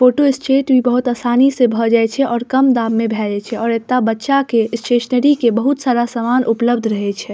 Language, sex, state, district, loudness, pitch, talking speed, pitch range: Maithili, female, Bihar, Saharsa, -15 LUFS, 240 Hz, 230 wpm, 230-255 Hz